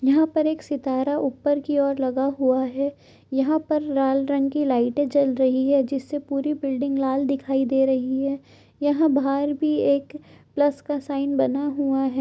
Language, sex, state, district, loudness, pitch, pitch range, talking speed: Hindi, female, Chhattisgarh, Korba, -23 LUFS, 275 Hz, 270-290 Hz, 180 wpm